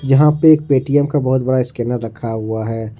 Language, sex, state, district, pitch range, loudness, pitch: Hindi, male, Jharkhand, Ranchi, 115-140 Hz, -16 LUFS, 130 Hz